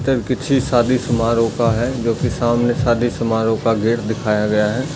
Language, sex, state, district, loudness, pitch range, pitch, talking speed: Hindi, male, Bihar, Darbhanga, -18 LUFS, 115-125 Hz, 120 Hz, 170 wpm